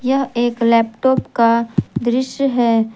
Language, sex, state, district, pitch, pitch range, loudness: Hindi, female, Jharkhand, Garhwa, 235 Hz, 230-260 Hz, -17 LUFS